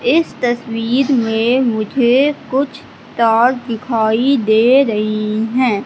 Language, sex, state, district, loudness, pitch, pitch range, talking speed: Hindi, female, Madhya Pradesh, Katni, -15 LUFS, 240 Hz, 225-265 Hz, 100 wpm